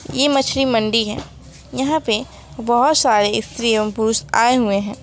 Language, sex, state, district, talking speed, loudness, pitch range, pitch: Hindi, female, West Bengal, Alipurduar, 165 wpm, -17 LUFS, 215-265 Hz, 230 Hz